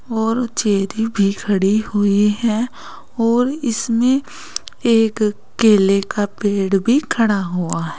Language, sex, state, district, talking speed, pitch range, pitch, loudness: Hindi, female, Uttar Pradesh, Saharanpur, 120 wpm, 200-230 Hz, 215 Hz, -17 LUFS